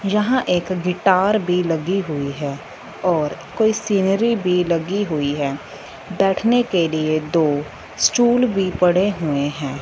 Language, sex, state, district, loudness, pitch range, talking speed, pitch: Hindi, female, Punjab, Fazilka, -19 LUFS, 155-200 Hz, 140 wpm, 180 Hz